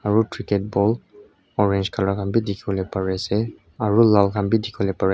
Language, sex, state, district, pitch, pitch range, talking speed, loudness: Nagamese, male, Mizoram, Aizawl, 105 Hz, 100-110 Hz, 185 wpm, -21 LUFS